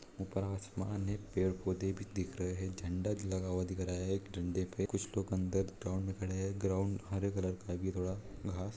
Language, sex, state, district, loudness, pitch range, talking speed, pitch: Hindi, male, Chhattisgarh, Raigarh, -38 LUFS, 95-100 Hz, 210 wpm, 95 Hz